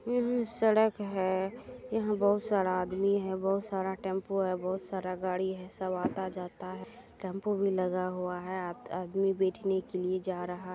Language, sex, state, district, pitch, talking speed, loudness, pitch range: Maithili, female, Bihar, Supaul, 190 Hz, 180 wpm, -32 LUFS, 185-200 Hz